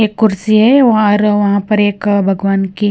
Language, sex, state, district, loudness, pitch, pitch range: Hindi, female, Punjab, Kapurthala, -12 LUFS, 205 Hz, 200-215 Hz